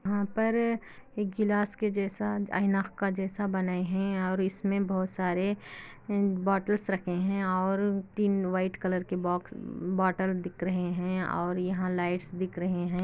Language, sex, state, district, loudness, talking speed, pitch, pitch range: Hindi, female, Andhra Pradesh, Anantapur, -30 LUFS, 155 wpm, 190 Hz, 185-200 Hz